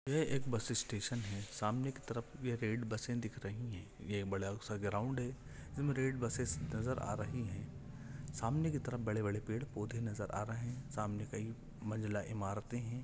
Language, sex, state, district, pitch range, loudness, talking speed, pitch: Hindi, male, Maharashtra, Nagpur, 105-130 Hz, -41 LUFS, 195 wpm, 115 Hz